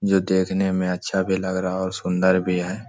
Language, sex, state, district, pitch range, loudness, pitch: Hindi, male, Jharkhand, Sahebganj, 90-95 Hz, -22 LUFS, 95 Hz